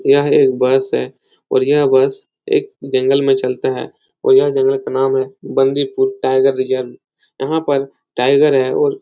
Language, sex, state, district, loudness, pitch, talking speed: Hindi, male, Uttar Pradesh, Etah, -15 LUFS, 145 Hz, 180 wpm